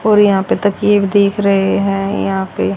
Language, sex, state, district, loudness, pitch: Hindi, female, Haryana, Rohtak, -14 LUFS, 195 Hz